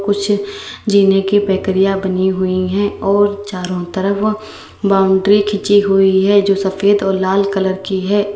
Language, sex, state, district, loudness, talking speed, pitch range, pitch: Hindi, female, Uttar Pradesh, Lalitpur, -14 LUFS, 150 wpm, 190-205 Hz, 195 Hz